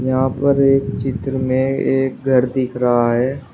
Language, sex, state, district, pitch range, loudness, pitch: Hindi, male, Uttar Pradesh, Shamli, 130-135 Hz, -17 LUFS, 130 Hz